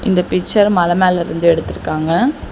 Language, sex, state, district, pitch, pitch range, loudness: Tamil, female, Tamil Nadu, Chennai, 180 Hz, 170-200 Hz, -15 LUFS